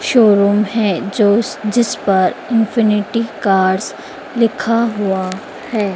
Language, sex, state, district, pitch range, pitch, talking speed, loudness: Hindi, female, Madhya Pradesh, Dhar, 200-230 Hz, 210 Hz, 100 wpm, -15 LUFS